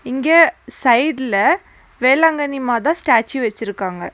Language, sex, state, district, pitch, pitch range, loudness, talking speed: Tamil, female, Tamil Nadu, Nilgiris, 260 Hz, 235-305 Hz, -16 LUFS, 85 wpm